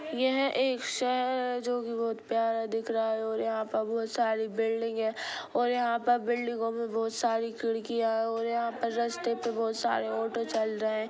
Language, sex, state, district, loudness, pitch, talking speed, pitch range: Hindi, female, Bihar, Sitamarhi, -30 LUFS, 230 Hz, 205 wpm, 225-240 Hz